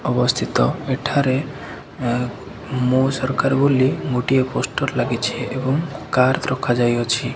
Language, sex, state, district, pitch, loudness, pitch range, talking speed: Odia, male, Odisha, Khordha, 130 Hz, -20 LUFS, 125-135 Hz, 90 wpm